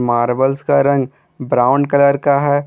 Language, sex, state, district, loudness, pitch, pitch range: Hindi, male, Jharkhand, Garhwa, -14 LUFS, 140 Hz, 135-140 Hz